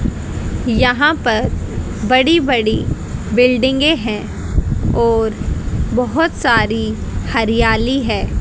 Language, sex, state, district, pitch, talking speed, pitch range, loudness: Hindi, female, Haryana, Jhajjar, 240 Hz, 70 wpm, 215-265 Hz, -16 LUFS